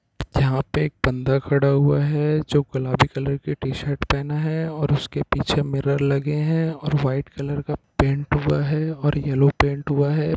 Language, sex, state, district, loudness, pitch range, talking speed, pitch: Hindi, male, Bihar, Jahanabad, -22 LUFS, 140-150 Hz, 185 wpm, 145 Hz